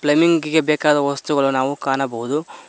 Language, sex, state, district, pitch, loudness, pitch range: Kannada, male, Karnataka, Koppal, 145 Hz, -18 LUFS, 135-150 Hz